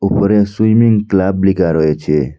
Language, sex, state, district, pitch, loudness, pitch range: Bengali, male, Assam, Hailakandi, 95 Hz, -13 LUFS, 80-105 Hz